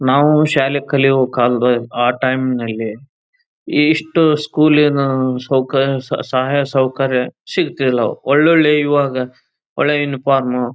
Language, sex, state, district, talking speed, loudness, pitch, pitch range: Kannada, male, Karnataka, Chamarajanagar, 100 wpm, -15 LUFS, 135 Hz, 125-150 Hz